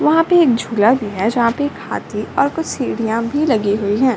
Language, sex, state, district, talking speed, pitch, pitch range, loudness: Hindi, female, Uttar Pradesh, Ghazipur, 245 wpm, 240 Hz, 220-285 Hz, -17 LUFS